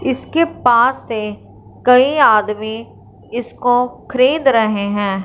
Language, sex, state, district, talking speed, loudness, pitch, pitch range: Hindi, female, Punjab, Fazilka, 105 wpm, -15 LUFS, 240 Hz, 215-255 Hz